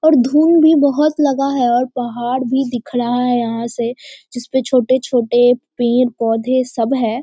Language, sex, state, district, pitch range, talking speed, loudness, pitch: Hindi, female, Bihar, Sitamarhi, 240-275 Hz, 175 wpm, -15 LUFS, 250 Hz